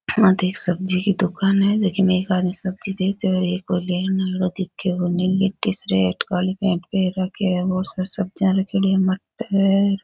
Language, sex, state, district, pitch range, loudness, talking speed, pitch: Rajasthani, female, Rajasthan, Churu, 185-195 Hz, -21 LUFS, 100 wpm, 190 Hz